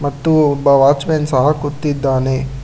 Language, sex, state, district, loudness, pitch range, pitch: Kannada, male, Karnataka, Bangalore, -14 LUFS, 135-150 Hz, 145 Hz